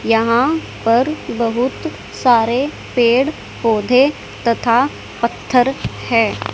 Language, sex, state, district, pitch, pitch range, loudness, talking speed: Hindi, female, Haryana, Charkhi Dadri, 240 Hz, 230-260 Hz, -16 LUFS, 85 wpm